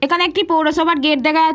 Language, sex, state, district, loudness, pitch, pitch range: Bengali, female, West Bengal, Paschim Medinipur, -15 LUFS, 320 Hz, 305-340 Hz